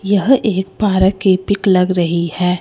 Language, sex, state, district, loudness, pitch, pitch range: Hindi, female, Chandigarh, Chandigarh, -15 LUFS, 190 Hz, 180-200 Hz